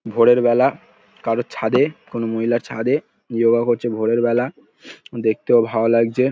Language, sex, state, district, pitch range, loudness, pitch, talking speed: Bengali, male, West Bengal, Paschim Medinipur, 115-120 Hz, -19 LUFS, 115 Hz, 140 wpm